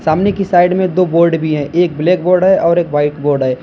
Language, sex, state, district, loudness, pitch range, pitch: Hindi, male, Uttar Pradesh, Lalitpur, -13 LUFS, 150-180 Hz, 170 Hz